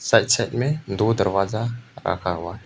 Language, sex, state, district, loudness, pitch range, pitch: Hindi, male, Arunachal Pradesh, Papum Pare, -22 LUFS, 95-120 Hz, 110 Hz